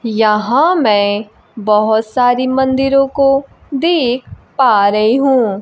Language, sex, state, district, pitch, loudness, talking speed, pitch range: Hindi, female, Bihar, Kaimur, 245 Hz, -13 LUFS, 105 wpm, 215-275 Hz